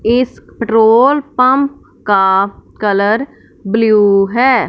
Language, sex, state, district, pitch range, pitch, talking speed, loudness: Hindi, male, Punjab, Fazilka, 200-255 Hz, 225 Hz, 90 wpm, -12 LUFS